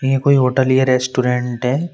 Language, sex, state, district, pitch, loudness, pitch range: Hindi, male, Uttar Pradesh, Shamli, 130 Hz, -16 LUFS, 125-135 Hz